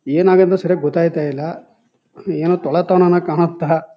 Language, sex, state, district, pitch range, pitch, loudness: Kannada, male, Karnataka, Chamarajanagar, 160-180 Hz, 170 Hz, -16 LUFS